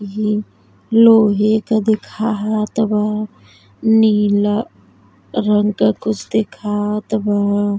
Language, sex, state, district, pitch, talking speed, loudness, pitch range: Bhojpuri, female, Uttar Pradesh, Deoria, 210 Hz, 90 wpm, -16 LUFS, 205-220 Hz